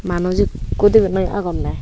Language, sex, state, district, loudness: Chakma, female, Tripura, West Tripura, -17 LUFS